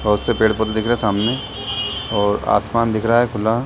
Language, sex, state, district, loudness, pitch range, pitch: Hindi, male, Uttar Pradesh, Deoria, -18 LUFS, 105-120 Hz, 110 Hz